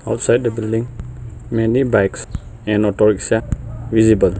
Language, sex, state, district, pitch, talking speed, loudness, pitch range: English, male, Arunachal Pradesh, Papum Pare, 115 Hz, 110 wpm, -17 LUFS, 110-115 Hz